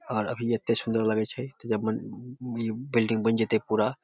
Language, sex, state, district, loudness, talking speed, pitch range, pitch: Maithili, male, Bihar, Samastipur, -28 LUFS, 235 wpm, 110-125 Hz, 115 Hz